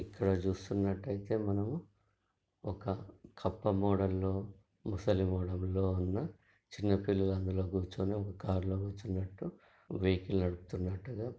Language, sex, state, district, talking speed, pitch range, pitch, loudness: Telugu, male, Telangana, Nalgonda, 110 wpm, 95-100 Hz, 95 Hz, -36 LUFS